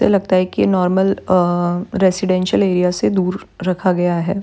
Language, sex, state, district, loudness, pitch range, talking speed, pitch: Hindi, female, Uttar Pradesh, Jyotiba Phule Nagar, -17 LUFS, 180-190 Hz, 175 wpm, 185 Hz